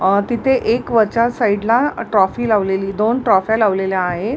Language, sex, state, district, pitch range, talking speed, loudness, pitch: Marathi, female, Maharashtra, Mumbai Suburban, 195-235 Hz, 165 wpm, -16 LUFS, 220 Hz